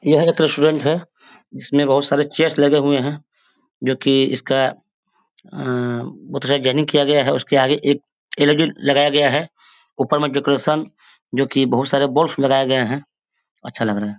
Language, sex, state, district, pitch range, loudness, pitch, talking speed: Hindi, male, Bihar, Sitamarhi, 135-150 Hz, -18 LUFS, 140 Hz, 175 wpm